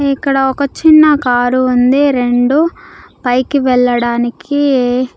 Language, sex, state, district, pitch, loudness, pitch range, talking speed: Telugu, female, Andhra Pradesh, Sri Satya Sai, 260 Hz, -12 LUFS, 245-280 Hz, 95 wpm